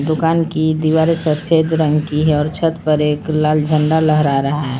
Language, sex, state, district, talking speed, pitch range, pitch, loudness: Hindi, female, Jharkhand, Palamu, 200 wpm, 150-160 Hz, 155 Hz, -15 LUFS